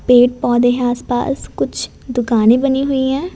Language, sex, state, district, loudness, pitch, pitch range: Hindi, female, Gujarat, Gandhinagar, -16 LUFS, 245 Hz, 245-265 Hz